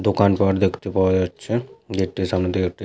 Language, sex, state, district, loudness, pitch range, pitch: Bengali, male, West Bengal, Malda, -21 LUFS, 95-100 Hz, 95 Hz